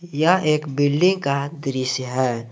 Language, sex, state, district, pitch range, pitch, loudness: Hindi, male, Jharkhand, Garhwa, 130-155 Hz, 145 Hz, -20 LUFS